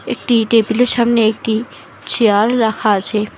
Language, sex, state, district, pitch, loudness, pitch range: Bengali, female, West Bengal, Alipurduar, 220 Hz, -14 LUFS, 215-235 Hz